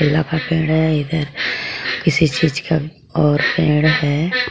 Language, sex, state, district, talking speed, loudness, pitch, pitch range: Hindi, female, Jharkhand, Garhwa, 105 wpm, -17 LUFS, 155 Hz, 150-160 Hz